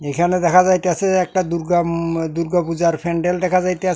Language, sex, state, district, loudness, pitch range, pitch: Bengali, male, Tripura, South Tripura, -18 LUFS, 170-185 Hz, 175 Hz